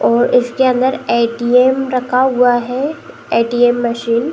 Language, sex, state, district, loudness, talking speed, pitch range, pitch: Hindi, female, Uttar Pradesh, Jalaun, -14 LUFS, 140 wpm, 235-255 Hz, 245 Hz